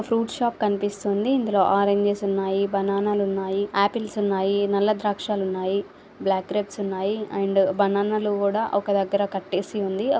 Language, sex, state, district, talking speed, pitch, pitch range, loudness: Telugu, female, Andhra Pradesh, Visakhapatnam, 130 wpm, 200 Hz, 195-210 Hz, -23 LUFS